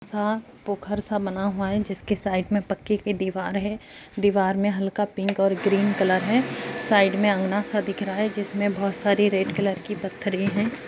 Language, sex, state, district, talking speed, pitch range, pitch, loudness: Hindi, female, Uttar Pradesh, Jalaun, 220 wpm, 195-210 Hz, 200 Hz, -24 LUFS